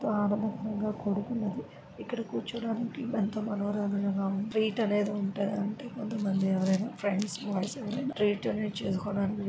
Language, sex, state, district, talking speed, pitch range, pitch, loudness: Telugu, female, Andhra Pradesh, Srikakulam, 100 wpm, 200-220 Hz, 205 Hz, -31 LUFS